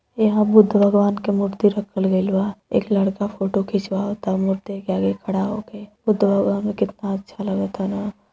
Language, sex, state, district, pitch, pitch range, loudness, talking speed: Bhojpuri, female, Uttar Pradesh, Deoria, 200 Hz, 195-205 Hz, -21 LUFS, 160 wpm